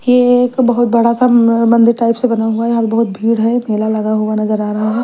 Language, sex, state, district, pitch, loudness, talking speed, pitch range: Hindi, female, Delhi, New Delhi, 230 Hz, -13 LUFS, 275 wpm, 220-240 Hz